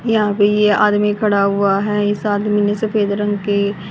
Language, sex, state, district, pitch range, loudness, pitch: Hindi, female, Haryana, Jhajjar, 200-210 Hz, -16 LUFS, 205 Hz